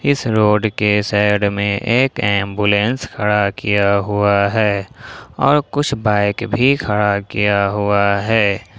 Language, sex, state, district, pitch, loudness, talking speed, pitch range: Hindi, male, Jharkhand, Ranchi, 105 Hz, -16 LUFS, 130 wpm, 100-115 Hz